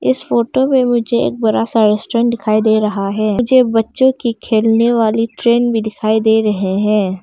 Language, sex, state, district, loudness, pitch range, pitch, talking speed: Hindi, female, Arunachal Pradesh, Longding, -14 LUFS, 210-235 Hz, 220 Hz, 190 wpm